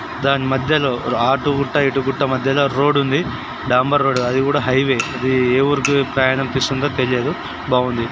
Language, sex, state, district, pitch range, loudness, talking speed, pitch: Telugu, male, Andhra Pradesh, Chittoor, 130-140 Hz, -17 LUFS, 140 wpm, 135 Hz